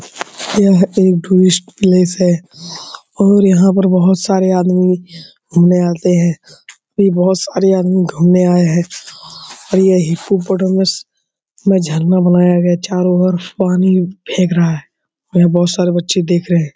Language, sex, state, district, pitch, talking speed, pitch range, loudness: Hindi, male, Bihar, Saran, 180 Hz, 155 wpm, 175-190 Hz, -13 LUFS